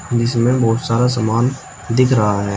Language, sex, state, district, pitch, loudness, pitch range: Hindi, male, Uttar Pradesh, Shamli, 115 Hz, -16 LUFS, 115-125 Hz